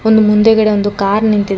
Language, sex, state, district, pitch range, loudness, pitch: Kannada, female, Karnataka, Bangalore, 205-220 Hz, -11 LUFS, 210 Hz